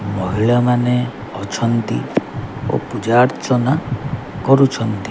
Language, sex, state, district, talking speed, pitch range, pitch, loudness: Odia, male, Odisha, Khordha, 80 wpm, 110-130 Hz, 120 Hz, -18 LUFS